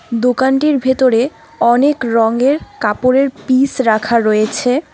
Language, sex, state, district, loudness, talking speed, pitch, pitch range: Bengali, female, West Bengal, Alipurduar, -14 LUFS, 95 wpm, 255 Hz, 230-275 Hz